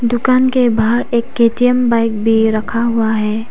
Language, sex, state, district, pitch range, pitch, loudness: Hindi, female, Arunachal Pradesh, Papum Pare, 220-245 Hz, 235 Hz, -14 LUFS